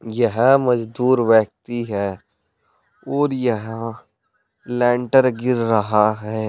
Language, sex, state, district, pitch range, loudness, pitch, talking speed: Hindi, male, Uttar Pradesh, Saharanpur, 110-125 Hz, -19 LUFS, 115 Hz, 90 wpm